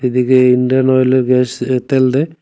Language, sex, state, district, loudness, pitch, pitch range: Bengali, male, Tripura, West Tripura, -13 LUFS, 130 Hz, 125-130 Hz